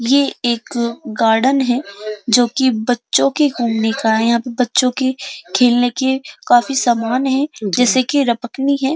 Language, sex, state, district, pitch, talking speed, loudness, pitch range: Hindi, female, Uttar Pradesh, Jyotiba Phule Nagar, 245 Hz, 160 wpm, -16 LUFS, 230-265 Hz